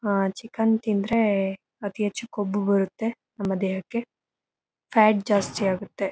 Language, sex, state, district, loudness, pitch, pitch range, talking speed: Kannada, female, Karnataka, Chamarajanagar, -25 LUFS, 205 Hz, 195-225 Hz, 120 wpm